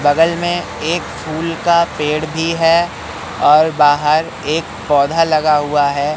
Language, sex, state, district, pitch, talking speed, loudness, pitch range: Hindi, male, Madhya Pradesh, Katni, 155 Hz, 145 wpm, -15 LUFS, 150-165 Hz